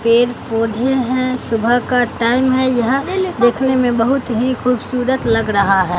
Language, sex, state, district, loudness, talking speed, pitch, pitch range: Hindi, male, Bihar, Katihar, -16 LUFS, 160 wpm, 245 Hz, 230-260 Hz